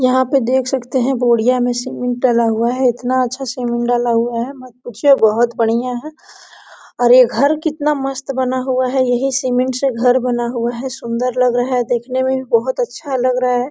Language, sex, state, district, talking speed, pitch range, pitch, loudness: Hindi, female, Jharkhand, Sahebganj, 215 wpm, 245-265 Hz, 255 Hz, -16 LUFS